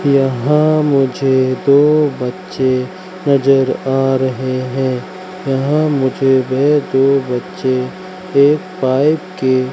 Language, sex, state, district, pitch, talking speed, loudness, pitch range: Hindi, male, Madhya Pradesh, Katni, 135 Hz, 100 wpm, -15 LUFS, 130-150 Hz